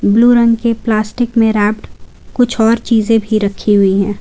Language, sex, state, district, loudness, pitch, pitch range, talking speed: Hindi, female, Jharkhand, Garhwa, -12 LUFS, 225 Hz, 210-235 Hz, 185 wpm